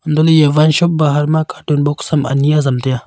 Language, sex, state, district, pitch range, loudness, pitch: Wancho, male, Arunachal Pradesh, Longding, 145-155 Hz, -13 LUFS, 150 Hz